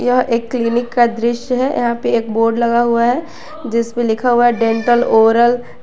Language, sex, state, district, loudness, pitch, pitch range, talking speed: Hindi, female, Jharkhand, Garhwa, -15 LUFS, 240 Hz, 230-245 Hz, 215 wpm